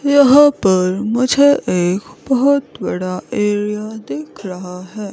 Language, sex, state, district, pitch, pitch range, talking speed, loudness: Hindi, female, Himachal Pradesh, Shimla, 210 Hz, 185-270 Hz, 115 wpm, -15 LUFS